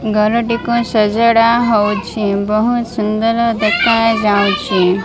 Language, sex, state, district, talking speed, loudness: Odia, female, Odisha, Malkangiri, 70 wpm, -14 LUFS